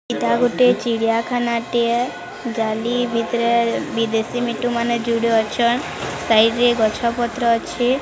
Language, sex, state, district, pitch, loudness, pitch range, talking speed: Odia, male, Odisha, Sambalpur, 235 Hz, -19 LUFS, 230-245 Hz, 60 wpm